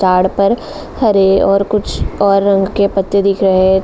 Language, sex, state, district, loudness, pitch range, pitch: Hindi, female, Uttar Pradesh, Jalaun, -13 LUFS, 190-200 Hz, 195 Hz